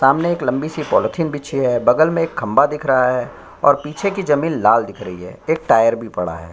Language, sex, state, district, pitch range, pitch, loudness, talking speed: Hindi, male, Chhattisgarh, Sukma, 115-160 Hz, 140 Hz, -17 LUFS, 240 wpm